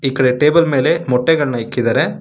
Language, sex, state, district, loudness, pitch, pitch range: Kannada, male, Karnataka, Bangalore, -15 LUFS, 135 Hz, 125-150 Hz